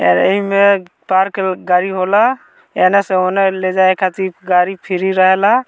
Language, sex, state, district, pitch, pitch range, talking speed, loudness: Bhojpuri, male, Bihar, Muzaffarpur, 190 Hz, 185-195 Hz, 150 wpm, -14 LUFS